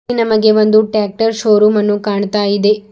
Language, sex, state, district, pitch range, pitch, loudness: Kannada, female, Karnataka, Bidar, 210-215 Hz, 210 Hz, -13 LUFS